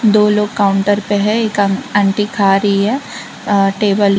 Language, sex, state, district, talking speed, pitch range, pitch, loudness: Hindi, female, Gujarat, Valsad, 185 wpm, 200-210 Hz, 205 Hz, -14 LUFS